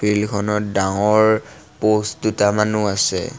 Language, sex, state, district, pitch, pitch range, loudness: Assamese, male, Assam, Sonitpur, 105 Hz, 100-105 Hz, -18 LUFS